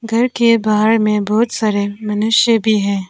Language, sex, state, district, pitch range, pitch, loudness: Hindi, female, Arunachal Pradesh, Papum Pare, 210-230 Hz, 220 Hz, -15 LUFS